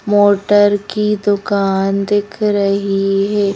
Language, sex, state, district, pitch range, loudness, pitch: Hindi, female, Madhya Pradesh, Bhopal, 195-205 Hz, -15 LUFS, 205 Hz